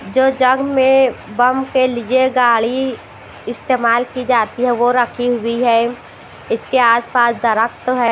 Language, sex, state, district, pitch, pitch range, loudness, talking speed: Hindi, female, Maharashtra, Washim, 245 Hz, 235-260 Hz, -15 LUFS, 140 wpm